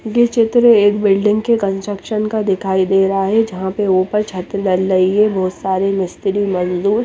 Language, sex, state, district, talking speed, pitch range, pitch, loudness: Hindi, female, Chandigarh, Chandigarh, 185 wpm, 190-215 Hz, 200 Hz, -15 LUFS